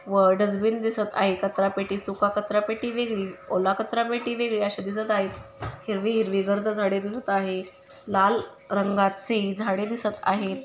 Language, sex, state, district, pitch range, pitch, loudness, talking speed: Marathi, female, Maharashtra, Dhule, 195-215 Hz, 200 Hz, -25 LUFS, 160 wpm